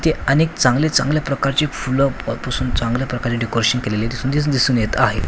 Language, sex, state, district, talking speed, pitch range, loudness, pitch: Marathi, male, Maharashtra, Washim, 160 wpm, 120-140 Hz, -18 LUFS, 130 Hz